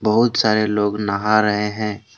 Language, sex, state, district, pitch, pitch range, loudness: Hindi, male, Jharkhand, Deoghar, 105 Hz, 105-110 Hz, -18 LUFS